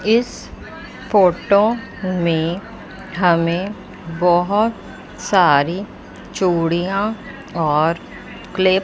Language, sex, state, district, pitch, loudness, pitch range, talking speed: Hindi, female, Chandigarh, Chandigarh, 185 Hz, -18 LUFS, 170-205 Hz, 70 wpm